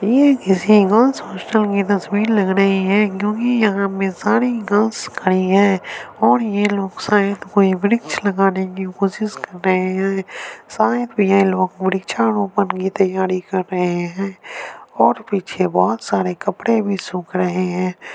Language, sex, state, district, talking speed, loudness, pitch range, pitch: Hindi, male, Chandigarh, Chandigarh, 150 wpm, -18 LUFS, 185-210 Hz, 195 Hz